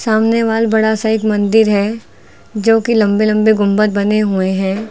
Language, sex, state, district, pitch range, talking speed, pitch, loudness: Hindi, female, Uttar Pradesh, Lucknow, 205-220 Hz, 170 wpm, 215 Hz, -13 LUFS